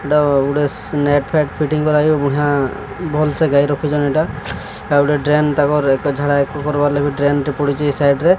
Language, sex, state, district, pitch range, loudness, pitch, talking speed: Odia, male, Odisha, Sambalpur, 145-150 Hz, -16 LUFS, 145 Hz, 135 wpm